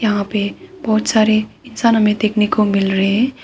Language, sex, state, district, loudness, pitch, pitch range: Hindi, female, Arunachal Pradesh, Papum Pare, -16 LUFS, 215 Hz, 210-230 Hz